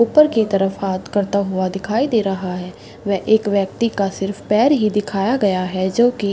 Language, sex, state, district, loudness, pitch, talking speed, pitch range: Hindi, female, Bihar, Saharsa, -18 LUFS, 200 Hz, 215 wpm, 195-220 Hz